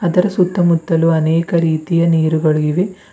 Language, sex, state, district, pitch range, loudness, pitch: Kannada, female, Karnataka, Bidar, 160-180 Hz, -15 LUFS, 170 Hz